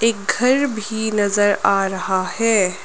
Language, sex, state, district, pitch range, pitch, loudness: Hindi, female, Arunachal Pradesh, Lower Dibang Valley, 195-230 Hz, 205 Hz, -18 LUFS